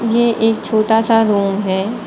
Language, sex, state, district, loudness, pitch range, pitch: Hindi, female, Uttar Pradesh, Lucknow, -15 LUFS, 200-225 Hz, 220 Hz